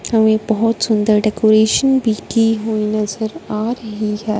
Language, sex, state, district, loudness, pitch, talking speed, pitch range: Hindi, female, Punjab, Fazilka, -16 LUFS, 220 Hz, 150 wpm, 215-225 Hz